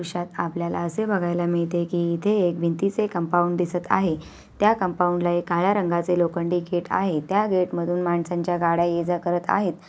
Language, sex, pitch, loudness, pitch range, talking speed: Awadhi, female, 175 Hz, -23 LUFS, 170-180 Hz, 180 wpm